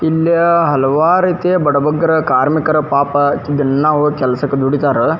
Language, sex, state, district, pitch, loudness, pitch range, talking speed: Kannada, male, Karnataka, Dharwad, 150 Hz, -13 LUFS, 140-160 Hz, 140 wpm